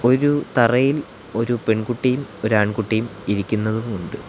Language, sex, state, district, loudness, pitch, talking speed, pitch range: Malayalam, male, Kerala, Kollam, -21 LUFS, 115 Hz, 110 wpm, 110-125 Hz